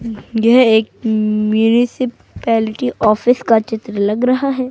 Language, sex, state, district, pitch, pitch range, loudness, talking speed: Hindi, female, Himachal Pradesh, Shimla, 225 Hz, 215-245 Hz, -15 LUFS, 115 wpm